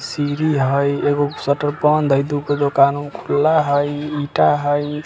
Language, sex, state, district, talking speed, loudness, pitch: Bajjika, male, Bihar, Vaishali, 140 wpm, -18 LUFS, 145 Hz